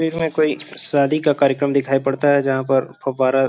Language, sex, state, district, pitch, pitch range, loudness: Hindi, male, Uttar Pradesh, Gorakhpur, 140 Hz, 135-150 Hz, -18 LUFS